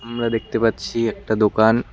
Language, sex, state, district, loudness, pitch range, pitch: Bengali, male, West Bengal, Cooch Behar, -20 LUFS, 110-115 Hz, 115 Hz